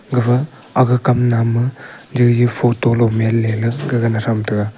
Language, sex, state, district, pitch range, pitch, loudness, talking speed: Wancho, male, Arunachal Pradesh, Longding, 115-125 Hz, 120 Hz, -16 LUFS, 165 wpm